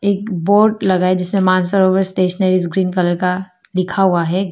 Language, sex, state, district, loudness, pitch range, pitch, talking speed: Hindi, female, Arunachal Pradesh, Papum Pare, -15 LUFS, 180-195 Hz, 185 Hz, 170 wpm